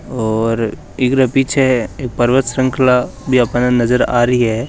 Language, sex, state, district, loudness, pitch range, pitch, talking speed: Hindi, male, Rajasthan, Nagaur, -15 LUFS, 120-130 Hz, 125 Hz, 155 wpm